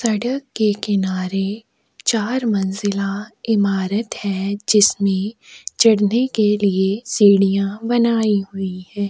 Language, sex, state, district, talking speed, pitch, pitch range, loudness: Hindi, female, Maharashtra, Aurangabad, 100 wpm, 205 Hz, 195-225 Hz, -18 LUFS